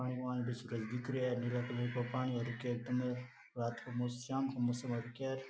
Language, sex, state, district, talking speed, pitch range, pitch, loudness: Rajasthani, male, Rajasthan, Nagaur, 195 wpm, 120-125 Hz, 125 Hz, -39 LUFS